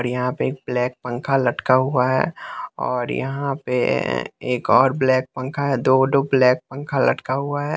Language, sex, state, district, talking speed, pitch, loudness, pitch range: Hindi, male, Bihar, West Champaran, 175 wpm, 130 Hz, -20 LUFS, 125-135 Hz